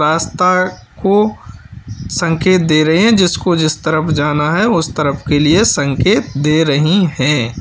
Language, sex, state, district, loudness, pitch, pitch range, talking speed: Hindi, male, Uttar Pradesh, Lalitpur, -13 LUFS, 155 Hz, 145-180 Hz, 150 wpm